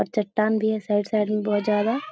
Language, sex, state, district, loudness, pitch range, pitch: Hindi, female, Bihar, Supaul, -23 LUFS, 210-220 Hz, 215 Hz